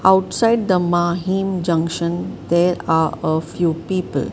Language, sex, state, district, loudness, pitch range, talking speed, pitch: English, male, Maharashtra, Mumbai Suburban, -19 LUFS, 165-185 Hz, 125 wpm, 175 Hz